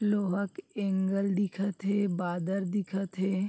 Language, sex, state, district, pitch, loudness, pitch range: Chhattisgarhi, male, Chhattisgarh, Bilaspur, 195 Hz, -31 LUFS, 190-200 Hz